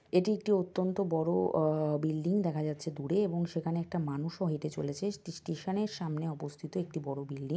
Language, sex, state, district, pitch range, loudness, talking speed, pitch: Bengali, female, West Bengal, North 24 Parganas, 155-185 Hz, -33 LUFS, 175 wpm, 165 Hz